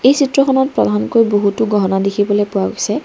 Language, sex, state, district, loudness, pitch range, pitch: Assamese, female, Assam, Kamrup Metropolitan, -15 LUFS, 195-260 Hz, 205 Hz